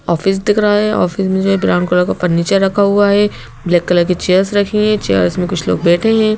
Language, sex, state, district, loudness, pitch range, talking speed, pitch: Hindi, female, Madhya Pradesh, Bhopal, -13 LUFS, 175-205 Hz, 255 wpm, 190 Hz